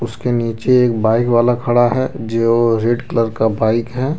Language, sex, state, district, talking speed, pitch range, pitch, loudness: Hindi, male, Jharkhand, Deoghar, 185 wpm, 115-120 Hz, 120 Hz, -16 LUFS